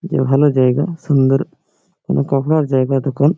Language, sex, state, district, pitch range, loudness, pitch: Bengali, male, West Bengal, Malda, 135-155 Hz, -16 LUFS, 135 Hz